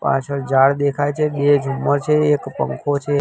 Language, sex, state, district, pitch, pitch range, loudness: Gujarati, male, Gujarat, Gandhinagar, 145 Hz, 135-145 Hz, -18 LUFS